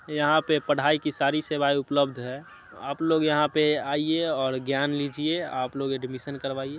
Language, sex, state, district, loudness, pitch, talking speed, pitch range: Hindi, male, Bihar, Muzaffarpur, -26 LUFS, 145 Hz, 160 wpm, 135-150 Hz